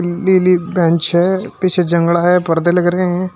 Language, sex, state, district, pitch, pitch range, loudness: Hindi, male, Uttar Pradesh, Shamli, 175 Hz, 170-185 Hz, -14 LUFS